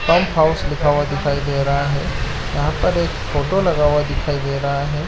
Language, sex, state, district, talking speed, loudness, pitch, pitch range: Hindi, male, Chhattisgarh, Korba, 210 wpm, -19 LUFS, 145 Hz, 140-150 Hz